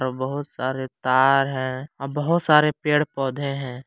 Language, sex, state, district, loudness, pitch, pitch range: Hindi, male, Jharkhand, Palamu, -22 LUFS, 135 Hz, 130-150 Hz